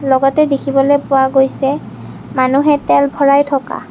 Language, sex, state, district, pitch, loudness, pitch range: Assamese, female, Assam, Kamrup Metropolitan, 275 Hz, -13 LUFS, 270-285 Hz